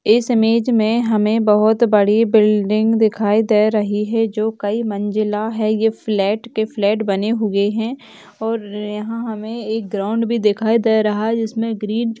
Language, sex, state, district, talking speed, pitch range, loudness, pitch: Hindi, female, Chhattisgarh, Kabirdham, 170 wpm, 210-225 Hz, -17 LUFS, 220 Hz